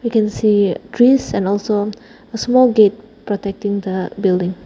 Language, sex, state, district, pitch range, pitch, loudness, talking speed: English, female, Nagaland, Dimapur, 200-230 Hz, 210 Hz, -16 LUFS, 155 wpm